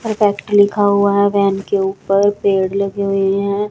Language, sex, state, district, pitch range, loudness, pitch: Hindi, female, Chandigarh, Chandigarh, 195-205 Hz, -15 LUFS, 200 Hz